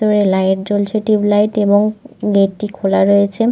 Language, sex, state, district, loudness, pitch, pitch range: Bengali, female, West Bengal, North 24 Parganas, -15 LUFS, 205 Hz, 200-215 Hz